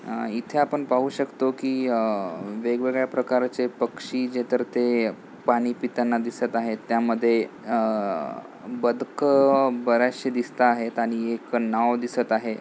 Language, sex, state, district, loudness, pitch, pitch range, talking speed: Marathi, male, Maharashtra, Pune, -24 LUFS, 120 Hz, 115-125 Hz, 130 wpm